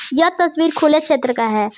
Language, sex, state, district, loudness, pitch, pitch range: Hindi, female, Jharkhand, Palamu, -15 LUFS, 305 Hz, 245-330 Hz